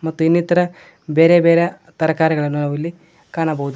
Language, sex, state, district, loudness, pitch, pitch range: Kannada, male, Karnataka, Koppal, -17 LUFS, 165 Hz, 155-170 Hz